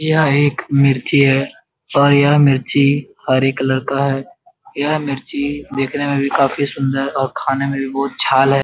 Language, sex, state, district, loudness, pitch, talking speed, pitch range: Hindi, male, Bihar, Jamui, -16 LUFS, 140 Hz, 180 wpm, 135-145 Hz